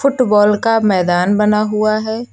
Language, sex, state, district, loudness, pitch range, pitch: Hindi, female, Uttar Pradesh, Lucknow, -14 LUFS, 205-225 Hz, 215 Hz